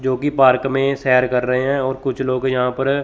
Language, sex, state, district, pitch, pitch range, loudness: Hindi, male, Chandigarh, Chandigarh, 130 Hz, 130-135 Hz, -18 LUFS